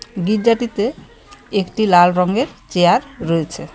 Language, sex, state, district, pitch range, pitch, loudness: Bengali, female, West Bengal, Cooch Behar, 175-220 Hz, 200 Hz, -17 LUFS